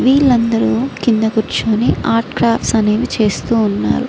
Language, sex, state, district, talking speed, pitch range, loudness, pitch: Telugu, female, Andhra Pradesh, Srikakulam, 115 wpm, 215-240 Hz, -15 LUFS, 225 Hz